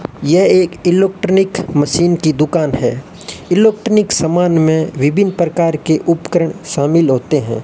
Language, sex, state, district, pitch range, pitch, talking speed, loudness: Hindi, male, Rajasthan, Bikaner, 150-185 Hz, 165 Hz, 135 wpm, -13 LUFS